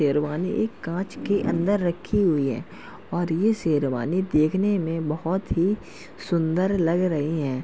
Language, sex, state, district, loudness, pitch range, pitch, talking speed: Hindi, male, Uttar Pradesh, Jalaun, -24 LUFS, 155-195 Hz, 175 Hz, 150 wpm